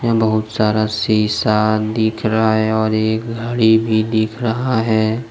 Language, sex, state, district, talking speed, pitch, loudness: Hindi, male, Jharkhand, Deoghar, 145 wpm, 110 Hz, -16 LUFS